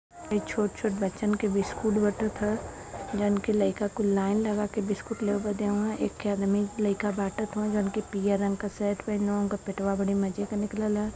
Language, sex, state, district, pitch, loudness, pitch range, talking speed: Bhojpuri, female, Uttar Pradesh, Varanasi, 205 Hz, -29 LUFS, 200-210 Hz, 195 wpm